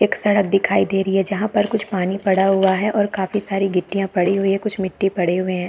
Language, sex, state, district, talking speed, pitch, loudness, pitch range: Hindi, female, Chhattisgarh, Bastar, 265 wpm, 195 Hz, -19 LUFS, 190-205 Hz